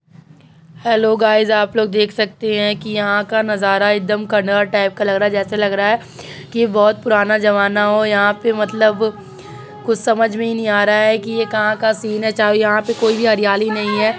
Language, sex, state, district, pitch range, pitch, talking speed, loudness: Hindi, male, Uttar Pradesh, Hamirpur, 205-220 Hz, 210 Hz, 225 wpm, -16 LUFS